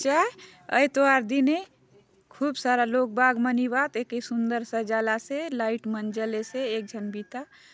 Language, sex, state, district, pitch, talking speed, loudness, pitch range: Halbi, female, Chhattisgarh, Bastar, 250 Hz, 155 wpm, -26 LUFS, 225-275 Hz